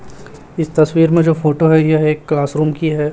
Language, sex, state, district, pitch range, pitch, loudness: Hindi, male, Chhattisgarh, Raipur, 150-160 Hz, 155 Hz, -14 LUFS